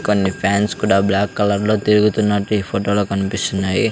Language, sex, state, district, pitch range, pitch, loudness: Telugu, male, Andhra Pradesh, Sri Satya Sai, 100-105 Hz, 100 Hz, -17 LUFS